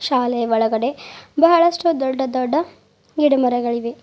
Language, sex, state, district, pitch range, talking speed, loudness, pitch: Kannada, female, Karnataka, Bidar, 245-310 Hz, 105 wpm, -18 LUFS, 265 Hz